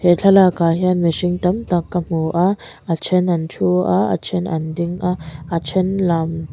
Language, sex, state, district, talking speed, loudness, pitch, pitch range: Mizo, female, Mizoram, Aizawl, 220 wpm, -18 LUFS, 175 Hz, 160-180 Hz